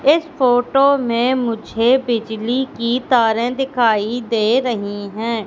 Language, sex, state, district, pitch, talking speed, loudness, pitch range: Hindi, female, Madhya Pradesh, Katni, 240 Hz, 120 wpm, -17 LUFS, 225-255 Hz